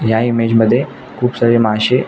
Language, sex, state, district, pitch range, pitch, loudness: Marathi, male, Maharashtra, Nagpur, 115-125 Hz, 115 Hz, -14 LUFS